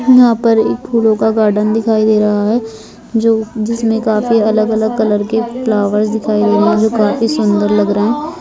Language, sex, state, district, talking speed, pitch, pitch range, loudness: Hindi, female, Chhattisgarh, Rajnandgaon, 200 wpm, 220 Hz, 210-225 Hz, -13 LUFS